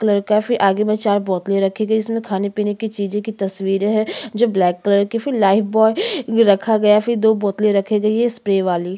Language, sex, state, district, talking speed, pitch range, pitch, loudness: Hindi, female, Chhattisgarh, Sukma, 215 wpm, 200-220 Hz, 210 Hz, -17 LUFS